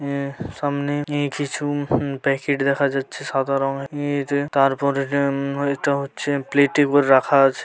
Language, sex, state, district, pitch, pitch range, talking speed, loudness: Bengali, female, West Bengal, Paschim Medinipur, 140 Hz, 140-145 Hz, 125 wpm, -21 LUFS